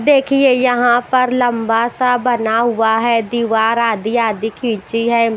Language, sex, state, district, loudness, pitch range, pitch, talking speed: Hindi, female, Haryana, Rohtak, -15 LUFS, 225-245 Hz, 235 Hz, 155 wpm